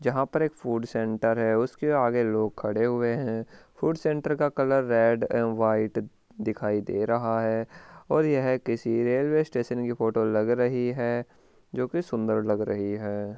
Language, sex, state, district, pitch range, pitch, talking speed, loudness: Hindi, male, Rajasthan, Churu, 110-130 Hz, 115 Hz, 175 wpm, -26 LUFS